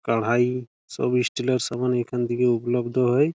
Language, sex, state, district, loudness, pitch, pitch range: Bengali, male, West Bengal, Malda, -23 LUFS, 125 Hz, 120-125 Hz